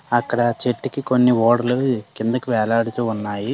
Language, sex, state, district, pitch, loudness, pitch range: Telugu, male, Telangana, Hyderabad, 120 Hz, -19 LUFS, 115-125 Hz